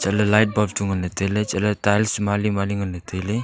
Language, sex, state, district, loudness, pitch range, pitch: Wancho, male, Arunachal Pradesh, Longding, -21 LUFS, 100-105 Hz, 100 Hz